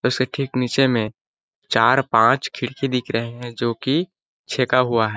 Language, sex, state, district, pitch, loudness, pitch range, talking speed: Hindi, male, Chhattisgarh, Balrampur, 125 Hz, -20 LUFS, 120-130 Hz, 175 wpm